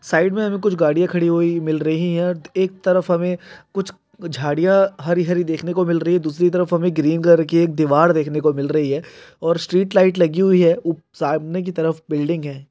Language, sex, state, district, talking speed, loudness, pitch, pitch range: Hindi, male, Rajasthan, Nagaur, 225 wpm, -18 LUFS, 170 Hz, 160-180 Hz